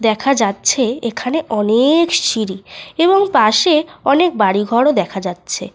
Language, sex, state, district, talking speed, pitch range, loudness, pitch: Bengali, female, Jharkhand, Sahebganj, 125 wpm, 210-305 Hz, -15 LUFS, 235 Hz